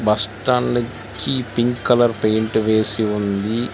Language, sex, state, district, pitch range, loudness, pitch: Telugu, male, Telangana, Hyderabad, 110-120 Hz, -19 LUFS, 110 Hz